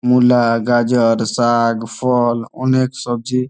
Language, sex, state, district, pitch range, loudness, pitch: Bengali, male, West Bengal, Malda, 115-125 Hz, -16 LUFS, 120 Hz